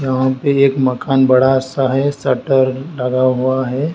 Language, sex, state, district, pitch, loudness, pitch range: Hindi, male, Madhya Pradesh, Dhar, 130 Hz, -15 LUFS, 130-135 Hz